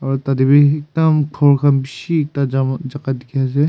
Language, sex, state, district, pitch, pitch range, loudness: Nagamese, male, Nagaland, Kohima, 140 Hz, 135-145 Hz, -16 LUFS